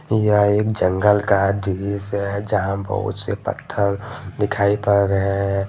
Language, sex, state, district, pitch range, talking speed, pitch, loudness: Hindi, male, Jharkhand, Deoghar, 100-105 Hz, 150 wpm, 100 Hz, -20 LUFS